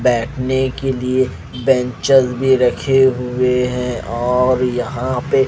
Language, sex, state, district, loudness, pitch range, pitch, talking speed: Hindi, male, Maharashtra, Mumbai Suburban, -17 LUFS, 125-130 Hz, 125 Hz, 120 wpm